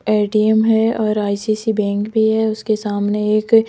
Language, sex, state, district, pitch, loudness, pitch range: Hindi, female, Rajasthan, Jaipur, 215 Hz, -17 LUFS, 210-220 Hz